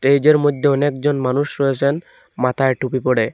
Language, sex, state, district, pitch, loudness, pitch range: Bengali, male, Assam, Hailakandi, 140 Hz, -18 LUFS, 130-145 Hz